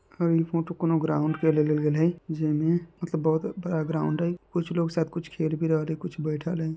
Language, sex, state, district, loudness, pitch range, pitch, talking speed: Hindi, male, Bihar, Muzaffarpur, -27 LUFS, 155-170 Hz, 165 Hz, 240 wpm